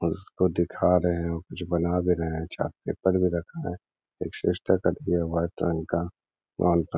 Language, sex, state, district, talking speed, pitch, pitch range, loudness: Hindi, male, Bihar, Gaya, 145 wpm, 85 Hz, 85-90 Hz, -27 LUFS